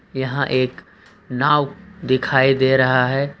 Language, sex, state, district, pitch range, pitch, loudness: Hindi, male, Jharkhand, Ranchi, 130-140 Hz, 130 Hz, -18 LUFS